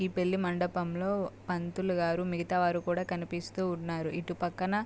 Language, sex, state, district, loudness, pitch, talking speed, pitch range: Telugu, female, Andhra Pradesh, Guntur, -32 LUFS, 180 Hz, 150 wpm, 175-185 Hz